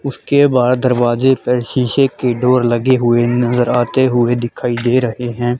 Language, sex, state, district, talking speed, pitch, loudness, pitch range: Hindi, male, Haryana, Charkhi Dadri, 170 wpm, 125 Hz, -14 LUFS, 120-130 Hz